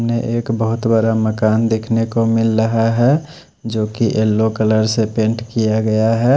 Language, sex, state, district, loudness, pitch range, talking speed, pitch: Hindi, male, Odisha, Khordha, -16 LUFS, 110-115 Hz, 170 wpm, 115 Hz